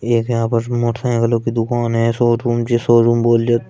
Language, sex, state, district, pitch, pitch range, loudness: Hindi, male, Uttar Pradesh, Shamli, 115 Hz, 115-120 Hz, -16 LUFS